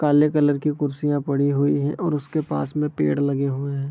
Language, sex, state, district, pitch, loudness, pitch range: Hindi, male, Bihar, Begusarai, 145 Hz, -22 LUFS, 140-150 Hz